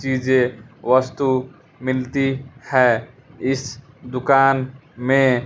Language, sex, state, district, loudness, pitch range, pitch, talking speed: Hindi, male, Bihar, West Champaran, -20 LUFS, 125-135 Hz, 130 Hz, 75 wpm